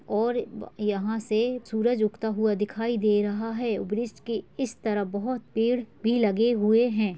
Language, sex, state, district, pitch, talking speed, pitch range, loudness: Hindi, female, Uttar Pradesh, Hamirpur, 220 Hz, 190 wpm, 210-235 Hz, -26 LUFS